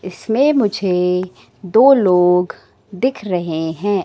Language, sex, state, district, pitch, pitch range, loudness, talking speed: Hindi, female, Madhya Pradesh, Katni, 185 Hz, 180-220 Hz, -16 LUFS, 105 wpm